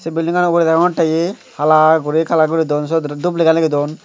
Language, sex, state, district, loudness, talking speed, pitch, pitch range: Chakma, male, Tripura, Unakoti, -15 LUFS, 235 wpm, 165 Hz, 155-170 Hz